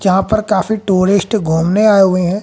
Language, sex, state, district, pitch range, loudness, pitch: Hindi, female, Haryana, Jhajjar, 185-215 Hz, -13 LUFS, 195 Hz